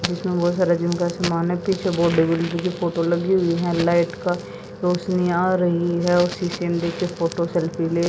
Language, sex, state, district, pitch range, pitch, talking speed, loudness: Hindi, female, Haryana, Jhajjar, 170-180 Hz, 175 Hz, 205 wpm, -21 LUFS